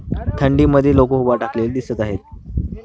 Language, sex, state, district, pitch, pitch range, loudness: Marathi, male, Maharashtra, Washim, 115 Hz, 95-130 Hz, -17 LUFS